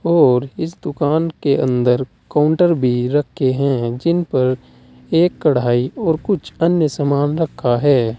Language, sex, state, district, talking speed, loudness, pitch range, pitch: Hindi, male, Uttar Pradesh, Saharanpur, 140 wpm, -17 LUFS, 125-165 Hz, 145 Hz